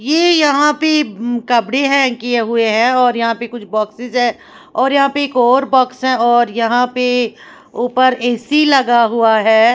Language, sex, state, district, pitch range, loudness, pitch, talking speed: Hindi, female, Haryana, Charkhi Dadri, 235-275 Hz, -14 LUFS, 245 Hz, 180 wpm